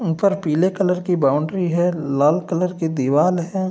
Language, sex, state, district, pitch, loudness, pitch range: Hindi, male, Bihar, Saharsa, 175 Hz, -19 LUFS, 155-185 Hz